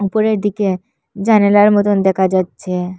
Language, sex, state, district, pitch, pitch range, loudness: Bengali, female, Assam, Hailakandi, 200 Hz, 185-205 Hz, -14 LUFS